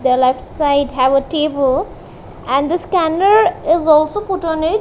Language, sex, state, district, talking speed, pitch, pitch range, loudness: English, female, Punjab, Kapurthala, 175 wpm, 305 Hz, 275-340 Hz, -15 LUFS